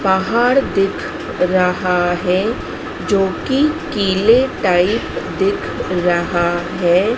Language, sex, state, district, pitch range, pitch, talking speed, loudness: Hindi, female, Madhya Pradesh, Dhar, 180-220 Hz, 190 Hz, 90 wpm, -17 LUFS